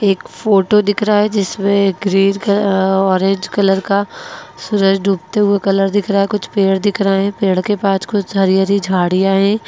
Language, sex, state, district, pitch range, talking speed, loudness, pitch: Hindi, female, Bihar, Lakhisarai, 195-205 Hz, 190 wpm, -14 LUFS, 195 Hz